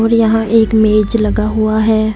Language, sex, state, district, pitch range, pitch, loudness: Hindi, female, Punjab, Fazilka, 215-225 Hz, 220 Hz, -12 LUFS